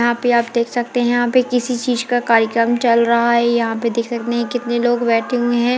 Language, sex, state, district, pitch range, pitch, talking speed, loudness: Hindi, female, Chhattisgarh, Sarguja, 235-245 Hz, 235 Hz, 240 wpm, -17 LUFS